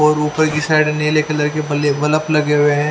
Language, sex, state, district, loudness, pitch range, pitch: Hindi, male, Haryana, Charkhi Dadri, -16 LUFS, 150-155 Hz, 150 Hz